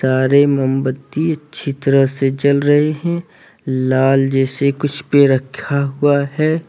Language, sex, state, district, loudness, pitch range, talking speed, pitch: Hindi, male, Jharkhand, Deoghar, -16 LUFS, 135-145 Hz, 135 wpm, 140 Hz